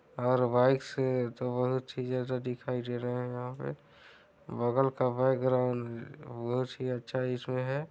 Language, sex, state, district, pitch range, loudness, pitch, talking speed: Hindi, male, Chhattisgarh, Raigarh, 125-130 Hz, -32 LUFS, 125 Hz, 165 wpm